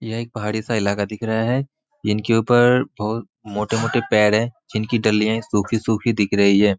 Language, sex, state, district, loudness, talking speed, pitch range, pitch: Hindi, male, Bihar, Saharsa, -20 LUFS, 175 wpm, 105-115 Hz, 110 Hz